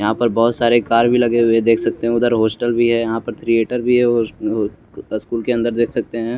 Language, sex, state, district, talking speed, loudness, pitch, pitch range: Hindi, male, Chandigarh, Chandigarh, 265 wpm, -17 LUFS, 115 Hz, 115-120 Hz